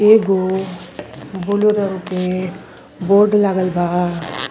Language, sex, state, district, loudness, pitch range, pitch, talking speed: Bhojpuri, female, Uttar Pradesh, Deoria, -17 LUFS, 180-200 Hz, 190 Hz, 95 wpm